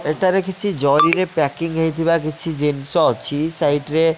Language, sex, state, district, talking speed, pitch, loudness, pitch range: Odia, male, Odisha, Khordha, 145 wpm, 160 Hz, -18 LUFS, 145-170 Hz